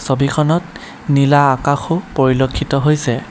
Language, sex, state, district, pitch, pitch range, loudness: Assamese, male, Assam, Kamrup Metropolitan, 140 Hz, 135-150 Hz, -15 LUFS